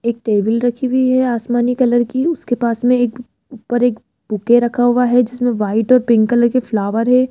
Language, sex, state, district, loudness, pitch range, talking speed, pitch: Hindi, female, Rajasthan, Jaipur, -15 LUFS, 235-250 Hz, 215 wpm, 240 Hz